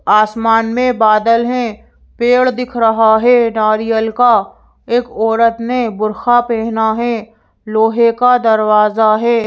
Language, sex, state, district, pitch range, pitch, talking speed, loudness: Hindi, female, Madhya Pradesh, Bhopal, 220-240 Hz, 225 Hz, 125 wpm, -13 LUFS